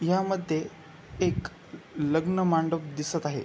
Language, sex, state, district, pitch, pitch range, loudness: Marathi, male, Maharashtra, Chandrapur, 165 Hz, 150-180 Hz, -28 LUFS